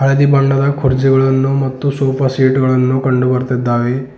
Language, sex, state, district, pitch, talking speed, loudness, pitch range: Kannada, male, Karnataka, Bidar, 135 Hz, 130 wpm, -13 LUFS, 130-135 Hz